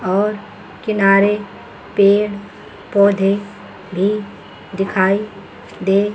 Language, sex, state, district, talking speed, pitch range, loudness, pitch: Hindi, female, Chandigarh, Chandigarh, 70 wpm, 195-210 Hz, -17 LUFS, 200 Hz